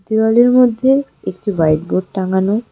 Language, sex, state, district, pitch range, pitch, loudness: Bengali, female, West Bengal, Darjeeling, 190-240 Hz, 215 Hz, -14 LUFS